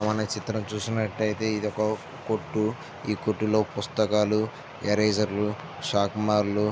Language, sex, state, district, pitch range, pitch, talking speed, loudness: Telugu, male, Andhra Pradesh, Visakhapatnam, 105-110 Hz, 110 Hz, 145 wpm, -27 LUFS